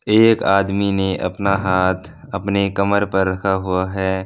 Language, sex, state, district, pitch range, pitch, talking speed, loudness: Hindi, male, Punjab, Fazilka, 95-100 Hz, 95 Hz, 155 wpm, -18 LUFS